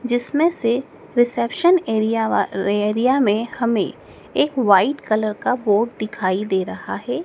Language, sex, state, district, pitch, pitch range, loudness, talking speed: Hindi, male, Madhya Pradesh, Dhar, 225 Hz, 210-250 Hz, -20 LUFS, 125 wpm